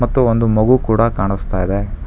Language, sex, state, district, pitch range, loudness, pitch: Kannada, male, Karnataka, Bangalore, 100-115 Hz, -16 LUFS, 110 Hz